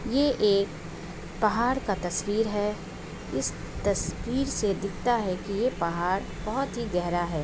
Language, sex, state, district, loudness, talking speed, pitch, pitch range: Hindi, female, Bihar, Begusarai, -28 LUFS, 145 wpm, 205 Hz, 180-235 Hz